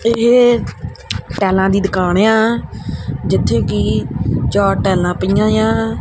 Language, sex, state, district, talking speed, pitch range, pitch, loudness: Punjabi, male, Punjab, Kapurthala, 110 wpm, 175-230 Hz, 195 Hz, -15 LUFS